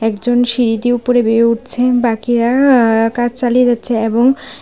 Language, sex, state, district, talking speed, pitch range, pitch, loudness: Bengali, female, Tripura, West Tripura, 170 wpm, 230-245 Hz, 240 Hz, -13 LUFS